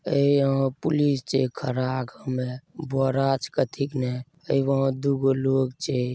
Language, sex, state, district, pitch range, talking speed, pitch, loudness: Angika, male, Bihar, Bhagalpur, 130-140 Hz, 165 wpm, 135 Hz, -25 LUFS